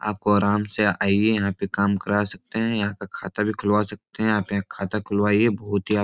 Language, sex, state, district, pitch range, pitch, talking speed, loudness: Hindi, male, Bihar, Supaul, 100-105 Hz, 105 Hz, 250 wpm, -23 LUFS